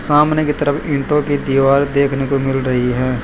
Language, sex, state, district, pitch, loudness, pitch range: Hindi, male, Gujarat, Valsad, 140 Hz, -16 LUFS, 135-145 Hz